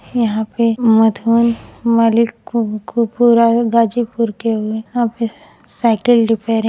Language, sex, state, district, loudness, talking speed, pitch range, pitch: Hindi, female, Uttar Pradesh, Ghazipur, -15 LUFS, 100 wpm, 225-235 Hz, 230 Hz